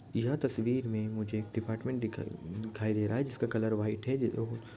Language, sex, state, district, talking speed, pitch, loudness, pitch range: Hindi, male, Bihar, Lakhisarai, 190 wpm, 110 Hz, -34 LUFS, 110-120 Hz